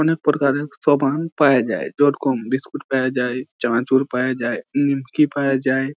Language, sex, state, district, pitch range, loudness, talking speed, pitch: Bengali, male, West Bengal, Jhargram, 130-145 Hz, -20 LUFS, 140 wpm, 135 Hz